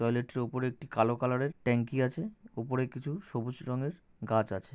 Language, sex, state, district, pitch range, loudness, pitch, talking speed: Bengali, male, West Bengal, North 24 Parganas, 120-145 Hz, -33 LUFS, 125 Hz, 165 wpm